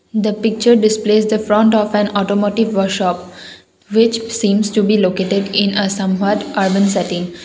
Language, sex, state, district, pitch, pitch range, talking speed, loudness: English, female, Assam, Kamrup Metropolitan, 205 Hz, 195-215 Hz, 155 wpm, -15 LUFS